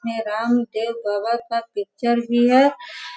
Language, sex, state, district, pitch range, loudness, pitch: Hindi, female, Bihar, Sitamarhi, 210-235 Hz, -20 LUFS, 230 Hz